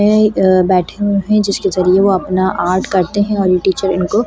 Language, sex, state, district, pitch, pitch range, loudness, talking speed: Hindi, female, Delhi, New Delhi, 190 Hz, 185-205 Hz, -14 LUFS, 240 wpm